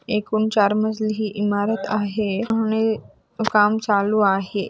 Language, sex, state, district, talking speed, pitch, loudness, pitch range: Marathi, female, Maharashtra, Solapur, 130 wpm, 215 Hz, -21 LUFS, 205-220 Hz